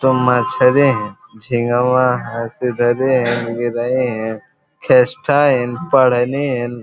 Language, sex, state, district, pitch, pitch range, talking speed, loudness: Bhojpuri, male, Uttar Pradesh, Gorakhpur, 125 Hz, 120-130 Hz, 115 wpm, -16 LUFS